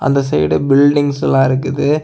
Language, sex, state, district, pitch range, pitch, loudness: Tamil, male, Tamil Nadu, Kanyakumari, 135-145 Hz, 140 Hz, -13 LUFS